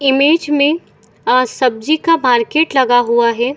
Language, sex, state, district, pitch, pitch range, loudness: Hindi, female, Chhattisgarh, Bilaspur, 265 Hz, 245-305 Hz, -14 LUFS